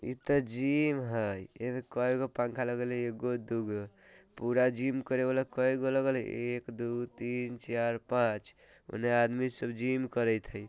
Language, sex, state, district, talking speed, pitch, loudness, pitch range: Bajjika, male, Bihar, Vaishali, 165 wpm, 120 Hz, -32 LUFS, 120-130 Hz